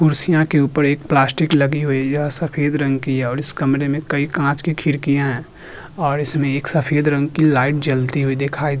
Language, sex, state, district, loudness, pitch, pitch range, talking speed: Hindi, male, Uttarakhand, Tehri Garhwal, -18 LUFS, 145 Hz, 140-155 Hz, 225 wpm